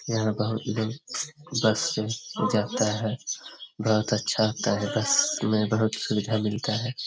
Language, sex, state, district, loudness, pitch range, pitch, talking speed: Hindi, male, Bihar, Jamui, -26 LUFS, 105-115 Hz, 110 Hz, 145 wpm